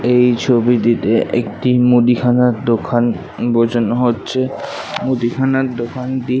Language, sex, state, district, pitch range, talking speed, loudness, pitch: Bengali, male, West Bengal, Kolkata, 120-125 Hz, 75 wpm, -16 LUFS, 125 Hz